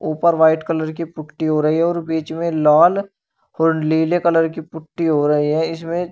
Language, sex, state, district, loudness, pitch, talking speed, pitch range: Hindi, male, Uttar Pradesh, Shamli, -18 LUFS, 160 Hz, 205 wpm, 155-170 Hz